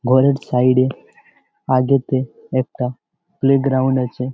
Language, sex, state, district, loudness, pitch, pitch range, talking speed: Bengali, male, West Bengal, Jalpaiguri, -18 LUFS, 130 Hz, 130-135 Hz, 110 wpm